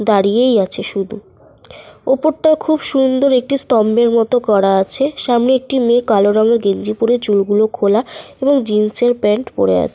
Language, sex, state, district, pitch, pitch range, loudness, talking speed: Bengali, female, Jharkhand, Sahebganj, 235 Hz, 210-260 Hz, -14 LUFS, 150 wpm